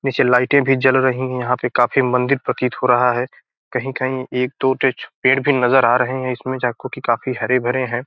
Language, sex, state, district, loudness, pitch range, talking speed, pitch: Hindi, male, Bihar, Gopalganj, -18 LUFS, 125-130 Hz, 210 wpm, 130 Hz